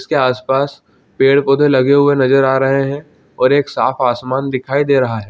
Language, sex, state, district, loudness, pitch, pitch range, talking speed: Hindi, male, Chhattisgarh, Bilaspur, -14 LUFS, 135 Hz, 130-140 Hz, 205 wpm